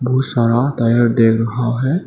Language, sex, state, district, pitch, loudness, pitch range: Hindi, male, Arunachal Pradesh, Lower Dibang Valley, 120 Hz, -15 LUFS, 115-130 Hz